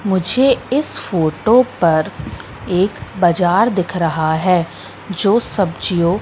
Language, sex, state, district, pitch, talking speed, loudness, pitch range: Hindi, female, Madhya Pradesh, Katni, 180 Hz, 105 wpm, -16 LUFS, 165-205 Hz